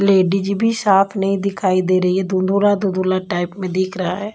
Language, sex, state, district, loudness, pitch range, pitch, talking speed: Hindi, female, Punjab, Kapurthala, -18 LUFS, 185-200 Hz, 195 Hz, 205 wpm